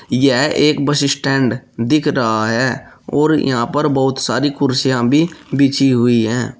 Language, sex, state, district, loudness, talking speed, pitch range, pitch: Hindi, male, Uttar Pradesh, Shamli, -15 LUFS, 155 wpm, 125-145 Hz, 135 Hz